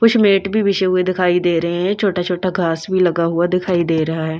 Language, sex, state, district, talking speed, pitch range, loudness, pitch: Hindi, female, Bihar, Patna, 245 wpm, 170-190 Hz, -17 LUFS, 180 Hz